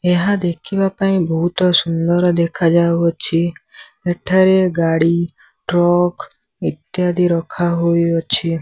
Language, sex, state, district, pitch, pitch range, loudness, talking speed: Odia, male, Odisha, Sambalpur, 175 Hz, 170-180 Hz, -16 LUFS, 75 wpm